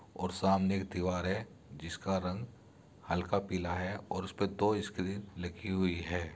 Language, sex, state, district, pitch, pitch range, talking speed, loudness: Hindi, male, Uttar Pradesh, Muzaffarnagar, 95 Hz, 90-100 Hz, 160 wpm, -35 LUFS